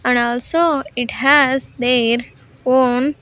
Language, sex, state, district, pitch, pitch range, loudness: English, female, Andhra Pradesh, Sri Satya Sai, 255 Hz, 245-280 Hz, -16 LUFS